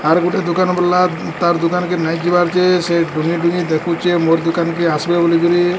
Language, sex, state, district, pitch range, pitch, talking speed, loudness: Odia, male, Odisha, Sambalpur, 165-175 Hz, 170 Hz, 205 wpm, -15 LUFS